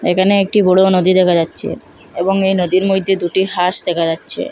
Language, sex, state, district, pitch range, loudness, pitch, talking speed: Bengali, female, Assam, Hailakandi, 175-190 Hz, -14 LUFS, 185 Hz, 185 wpm